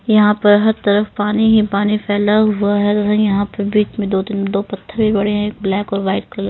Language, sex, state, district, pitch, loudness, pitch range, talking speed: Hindi, male, Punjab, Pathankot, 205 Hz, -16 LUFS, 200-210 Hz, 240 wpm